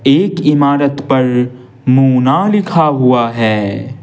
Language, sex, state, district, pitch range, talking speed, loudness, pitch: Hindi, male, Bihar, Patna, 125-145 Hz, 105 wpm, -12 LUFS, 130 Hz